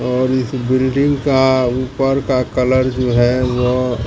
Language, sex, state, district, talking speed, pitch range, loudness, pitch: Hindi, male, Bihar, Katihar, 145 wpm, 125-130 Hz, -15 LUFS, 130 Hz